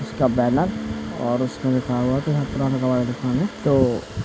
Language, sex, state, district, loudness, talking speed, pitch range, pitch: Hindi, male, Uttar Pradesh, Jalaun, -22 LUFS, 125 wpm, 120-130 Hz, 125 Hz